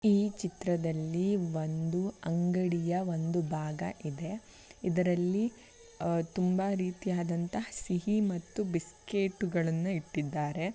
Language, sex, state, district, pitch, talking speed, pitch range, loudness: Kannada, female, Karnataka, Bellary, 180 Hz, 85 wpm, 165-195 Hz, -33 LUFS